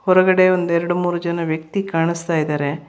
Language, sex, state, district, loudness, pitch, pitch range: Kannada, female, Karnataka, Bangalore, -18 LUFS, 170 Hz, 160-185 Hz